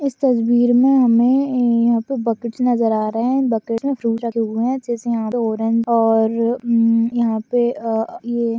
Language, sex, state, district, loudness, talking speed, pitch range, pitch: Hindi, female, Maharashtra, Pune, -18 LUFS, 180 wpm, 230-245 Hz, 235 Hz